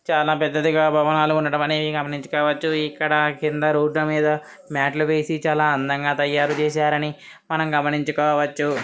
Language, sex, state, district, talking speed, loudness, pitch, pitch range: Telugu, male, Andhra Pradesh, Srikakulam, 135 wpm, -21 LUFS, 150 Hz, 150-155 Hz